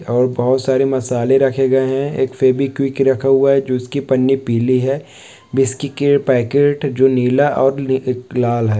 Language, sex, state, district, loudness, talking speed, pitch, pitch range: Hindi, male, West Bengal, Purulia, -16 LUFS, 185 wpm, 130 Hz, 125-135 Hz